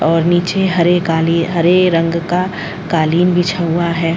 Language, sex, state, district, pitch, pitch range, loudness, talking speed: Hindi, female, Bihar, Madhepura, 170 Hz, 165-180 Hz, -14 LUFS, 170 wpm